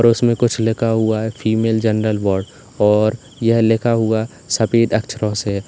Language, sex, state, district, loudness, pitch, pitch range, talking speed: Hindi, male, Uttar Pradesh, Saharanpur, -17 LUFS, 110 Hz, 105-115 Hz, 170 wpm